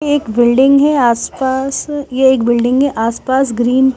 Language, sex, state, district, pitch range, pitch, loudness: Hindi, female, Haryana, Charkhi Dadri, 240-275 Hz, 260 Hz, -13 LUFS